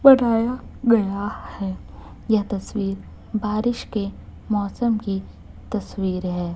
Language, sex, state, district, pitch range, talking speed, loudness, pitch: Hindi, female, Chhattisgarh, Raipur, 195-230 Hz, 90 wpm, -23 LUFS, 210 Hz